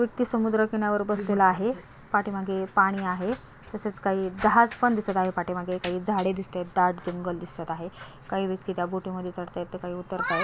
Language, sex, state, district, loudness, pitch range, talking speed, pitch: Marathi, female, Maharashtra, Solapur, -27 LUFS, 180-210 Hz, 170 wpm, 190 Hz